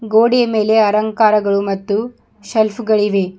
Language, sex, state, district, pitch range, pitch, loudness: Kannada, female, Karnataka, Bidar, 205-225 Hz, 215 Hz, -15 LUFS